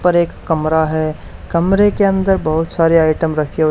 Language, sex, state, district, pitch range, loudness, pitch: Hindi, male, Haryana, Charkhi Dadri, 155-180 Hz, -15 LUFS, 165 Hz